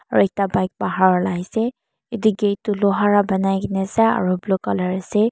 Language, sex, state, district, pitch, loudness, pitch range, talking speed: Nagamese, female, Mizoram, Aizawl, 195 Hz, -20 LUFS, 185-210 Hz, 205 wpm